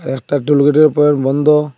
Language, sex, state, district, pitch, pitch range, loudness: Bengali, male, Assam, Hailakandi, 145 Hz, 140-150 Hz, -13 LUFS